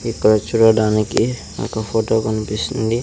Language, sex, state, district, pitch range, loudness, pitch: Telugu, male, Andhra Pradesh, Sri Satya Sai, 110-115 Hz, -18 LUFS, 110 Hz